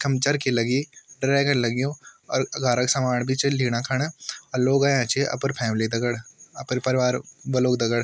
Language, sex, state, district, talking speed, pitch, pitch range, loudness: Garhwali, male, Uttarakhand, Tehri Garhwal, 170 wpm, 130 Hz, 125-140 Hz, -23 LUFS